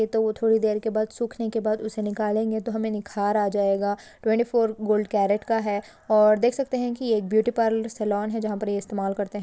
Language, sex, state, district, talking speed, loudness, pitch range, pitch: Hindi, female, Maharashtra, Pune, 225 wpm, -24 LUFS, 205-225 Hz, 215 Hz